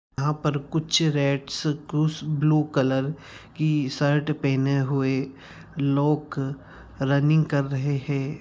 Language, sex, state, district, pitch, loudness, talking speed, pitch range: Hindi, male, Bihar, Jamui, 140 Hz, -24 LUFS, 115 wpm, 135-150 Hz